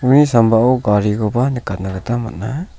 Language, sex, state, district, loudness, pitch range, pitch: Garo, male, Meghalaya, South Garo Hills, -16 LUFS, 105-125 Hz, 115 Hz